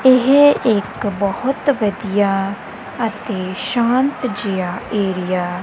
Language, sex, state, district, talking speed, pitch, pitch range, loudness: Punjabi, female, Punjab, Kapurthala, 95 wpm, 205 Hz, 195-250 Hz, -18 LUFS